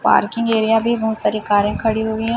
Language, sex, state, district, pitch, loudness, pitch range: Hindi, female, Chhattisgarh, Raipur, 220 Hz, -18 LUFS, 220-225 Hz